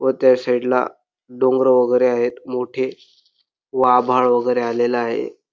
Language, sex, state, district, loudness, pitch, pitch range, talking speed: Marathi, male, Maharashtra, Dhule, -18 LUFS, 125 Hz, 125-130 Hz, 140 wpm